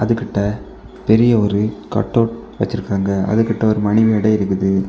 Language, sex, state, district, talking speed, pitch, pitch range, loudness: Tamil, male, Tamil Nadu, Kanyakumari, 135 wpm, 105 Hz, 100-115 Hz, -17 LUFS